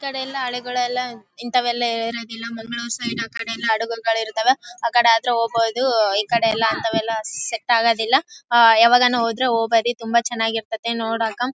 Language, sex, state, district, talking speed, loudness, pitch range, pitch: Kannada, female, Karnataka, Bellary, 145 wpm, -20 LUFS, 225-240 Hz, 230 Hz